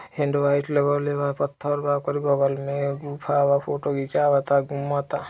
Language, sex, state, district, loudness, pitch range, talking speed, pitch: Hindi, male, Uttar Pradesh, Deoria, -23 LUFS, 140-145 Hz, 145 wpm, 145 Hz